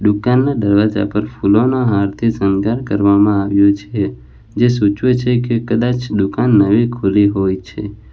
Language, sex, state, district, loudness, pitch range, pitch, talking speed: Gujarati, male, Gujarat, Valsad, -15 LUFS, 100-120 Hz, 105 Hz, 150 wpm